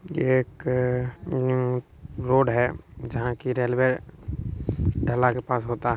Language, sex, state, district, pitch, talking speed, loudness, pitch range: Hindi, male, Bihar, Supaul, 125 Hz, 110 wpm, -25 LUFS, 120-130 Hz